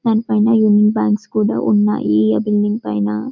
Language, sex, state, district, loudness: Telugu, female, Telangana, Karimnagar, -15 LUFS